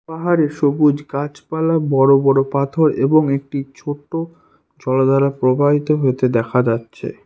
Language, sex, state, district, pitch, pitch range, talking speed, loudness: Bengali, male, West Bengal, Alipurduar, 140 Hz, 135-155 Hz, 115 wpm, -17 LUFS